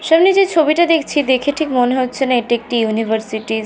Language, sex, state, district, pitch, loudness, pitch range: Bengali, female, West Bengal, North 24 Parganas, 255 Hz, -15 LUFS, 225-310 Hz